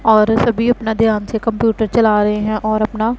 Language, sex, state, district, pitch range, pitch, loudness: Hindi, female, Punjab, Pathankot, 215-225 Hz, 220 Hz, -15 LUFS